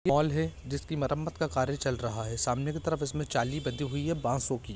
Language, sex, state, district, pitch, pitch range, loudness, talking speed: Hindi, male, Andhra Pradesh, Chittoor, 140 Hz, 130-155 Hz, -31 LUFS, 240 wpm